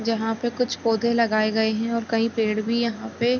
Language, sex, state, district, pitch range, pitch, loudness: Hindi, female, Bihar, Gopalganj, 220-235 Hz, 230 Hz, -23 LUFS